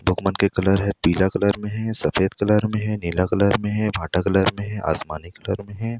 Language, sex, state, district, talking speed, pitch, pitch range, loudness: Chhattisgarhi, male, Chhattisgarh, Rajnandgaon, 250 wpm, 100 Hz, 95-105 Hz, -21 LUFS